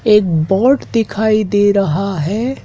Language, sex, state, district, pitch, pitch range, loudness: Hindi, male, Madhya Pradesh, Dhar, 210 Hz, 195-225 Hz, -14 LUFS